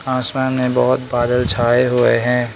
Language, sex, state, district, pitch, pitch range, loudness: Hindi, male, Arunachal Pradesh, Lower Dibang Valley, 125 Hz, 120-125 Hz, -15 LUFS